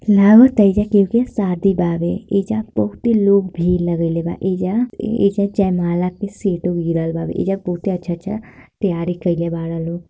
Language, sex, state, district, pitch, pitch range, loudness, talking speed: Bhojpuri, female, Bihar, Gopalganj, 190 Hz, 175-205 Hz, -17 LUFS, 145 wpm